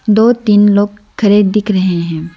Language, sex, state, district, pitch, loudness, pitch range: Hindi, female, Arunachal Pradesh, Lower Dibang Valley, 205 Hz, -11 LUFS, 190-210 Hz